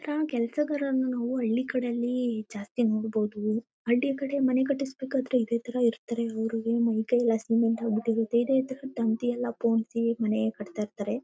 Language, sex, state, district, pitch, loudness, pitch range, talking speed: Kannada, female, Karnataka, Mysore, 235 Hz, -28 LUFS, 225-255 Hz, 145 wpm